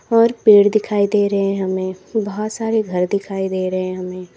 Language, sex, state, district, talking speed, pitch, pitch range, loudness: Hindi, female, Uttar Pradesh, Lalitpur, 205 wpm, 200 Hz, 185-215 Hz, -18 LUFS